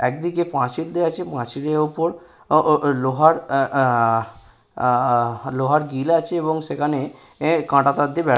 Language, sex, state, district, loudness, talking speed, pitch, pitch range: Bengali, male, West Bengal, Purulia, -20 LUFS, 120 wpm, 145 Hz, 130-165 Hz